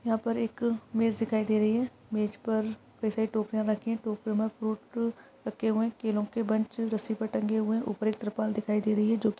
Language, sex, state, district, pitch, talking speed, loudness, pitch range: Hindi, female, Uttar Pradesh, Varanasi, 220 Hz, 250 wpm, -30 LUFS, 215-225 Hz